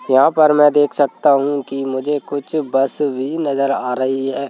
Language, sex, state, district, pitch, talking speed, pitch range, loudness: Hindi, male, Madhya Pradesh, Bhopal, 140 Hz, 200 wpm, 135-145 Hz, -17 LUFS